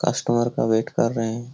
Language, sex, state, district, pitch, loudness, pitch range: Hindi, male, Bihar, Lakhisarai, 115 Hz, -22 LUFS, 115-120 Hz